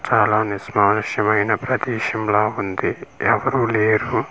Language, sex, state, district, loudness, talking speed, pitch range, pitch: Telugu, male, Andhra Pradesh, Manyam, -19 LUFS, 95 wpm, 105-115 Hz, 110 Hz